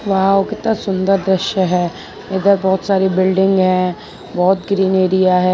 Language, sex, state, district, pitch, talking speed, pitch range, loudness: Hindi, female, Gujarat, Valsad, 190 Hz, 150 wpm, 185-195 Hz, -15 LUFS